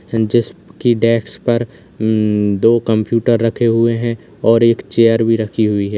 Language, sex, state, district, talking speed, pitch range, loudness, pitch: Hindi, male, Uttar Pradesh, Lalitpur, 140 wpm, 110-115 Hz, -15 LUFS, 115 Hz